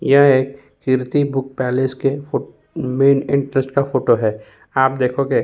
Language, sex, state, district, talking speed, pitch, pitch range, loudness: Hindi, male, Uttar Pradesh, Jyotiba Phule Nagar, 165 wpm, 135 Hz, 130-140 Hz, -18 LUFS